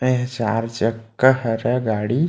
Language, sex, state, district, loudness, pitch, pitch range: Chhattisgarhi, male, Chhattisgarh, Kabirdham, -20 LUFS, 115 Hz, 115-125 Hz